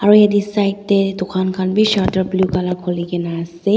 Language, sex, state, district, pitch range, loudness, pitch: Nagamese, female, Nagaland, Dimapur, 180-205 Hz, -17 LUFS, 190 Hz